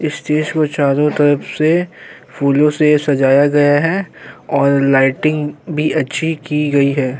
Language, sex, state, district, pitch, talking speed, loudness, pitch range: Hindi, male, Uttar Pradesh, Jyotiba Phule Nagar, 150 Hz, 140 wpm, -14 LUFS, 140-155 Hz